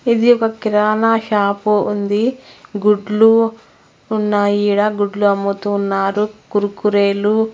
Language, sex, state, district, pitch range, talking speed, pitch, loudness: Telugu, female, Andhra Pradesh, Anantapur, 205-220 Hz, 95 wpm, 210 Hz, -16 LUFS